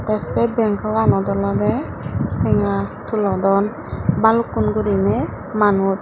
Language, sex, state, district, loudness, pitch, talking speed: Chakma, female, Tripura, Dhalai, -19 LUFS, 195 Hz, 90 wpm